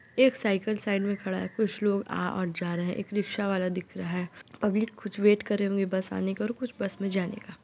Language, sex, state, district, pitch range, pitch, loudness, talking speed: Hindi, female, Bihar, Muzaffarpur, 190-210 Hz, 200 Hz, -29 LUFS, 280 wpm